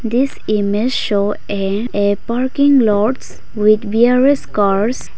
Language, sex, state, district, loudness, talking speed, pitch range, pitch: English, female, Nagaland, Kohima, -15 LUFS, 105 wpm, 205-250 Hz, 215 Hz